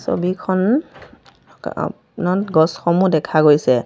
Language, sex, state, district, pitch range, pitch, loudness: Assamese, female, Assam, Sonitpur, 160-190 Hz, 180 Hz, -17 LUFS